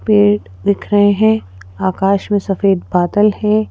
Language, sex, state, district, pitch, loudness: Hindi, female, Madhya Pradesh, Bhopal, 195 Hz, -14 LUFS